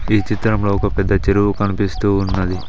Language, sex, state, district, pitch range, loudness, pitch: Telugu, male, Telangana, Mahabubabad, 95-105 Hz, -17 LUFS, 100 Hz